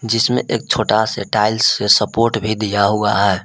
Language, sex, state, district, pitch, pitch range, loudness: Hindi, male, Jharkhand, Palamu, 105 Hz, 105-115 Hz, -16 LUFS